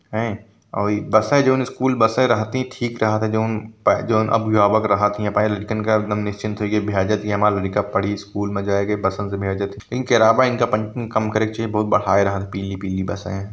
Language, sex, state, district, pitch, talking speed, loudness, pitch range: Hindi, male, Uttar Pradesh, Varanasi, 105 Hz, 105 wpm, -20 LUFS, 100-110 Hz